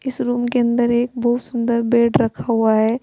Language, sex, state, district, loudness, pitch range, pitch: Hindi, female, Uttar Pradesh, Saharanpur, -18 LUFS, 235-245 Hz, 240 Hz